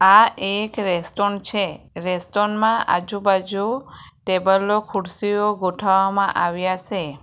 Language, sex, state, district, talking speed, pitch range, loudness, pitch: Gujarati, female, Gujarat, Valsad, 100 wpm, 185-205 Hz, -20 LUFS, 195 Hz